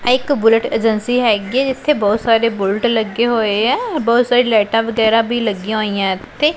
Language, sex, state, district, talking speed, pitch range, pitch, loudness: Punjabi, female, Punjab, Pathankot, 180 wpm, 215-245 Hz, 230 Hz, -15 LUFS